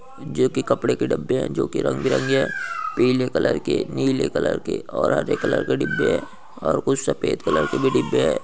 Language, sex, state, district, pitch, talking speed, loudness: Hindi, male, Bihar, Saharsa, 260 Hz, 205 wpm, -22 LUFS